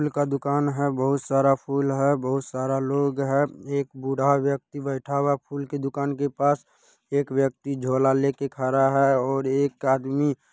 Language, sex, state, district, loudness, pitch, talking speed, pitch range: Hindi, male, Bihar, Purnia, -24 LUFS, 140 Hz, 180 wpm, 135-140 Hz